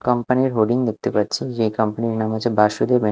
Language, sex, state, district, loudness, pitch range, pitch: Bengali, male, Odisha, Malkangiri, -20 LUFS, 110-125 Hz, 115 Hz